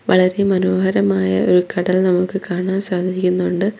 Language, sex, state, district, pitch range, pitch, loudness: Malayalam, female, Kerala, Kollam, 180-190 Hz, 185 Hz, -17 LUFS